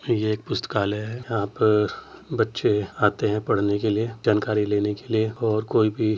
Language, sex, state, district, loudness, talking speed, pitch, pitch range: Hindi, male, Uttar Pradesh, Jyotiba Phule Nagar, -24 LUFS, 195 wpm, 110 Hz, 105-110 Hz